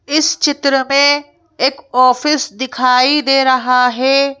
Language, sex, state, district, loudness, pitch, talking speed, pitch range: Hindi, female, Madhya Pradesh, Bhopal, -13 LUFS, 270 Hz, 120 wpm, 255-290 Hz